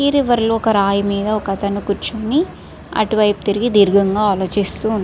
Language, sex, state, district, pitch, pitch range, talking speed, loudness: Telugu, female, Andhra Pradesh, Srikakulam, 210 Hz, 200-220 Hz, 180 wpm, -17 LUFS